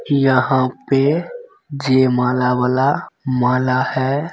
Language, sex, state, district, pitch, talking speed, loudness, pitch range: Hindi, male, Bihar, Begusarai, 130 Hz, 85 wpm, -17 LUFS, 125-140 Hz